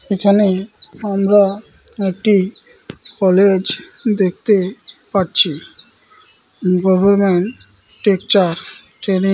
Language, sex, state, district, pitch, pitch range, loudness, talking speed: Bengali, male, West Bengal, Malda, 200 Hz, 190-205 Hz, -16 LUFS, 70 wpm